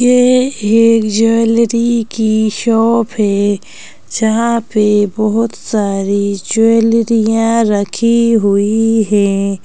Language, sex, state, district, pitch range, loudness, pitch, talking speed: Hindi, female, Madhya Pradesh, Bhopal, 210-230 Hz, -12 LUFS, 225 Hz, 85 wpm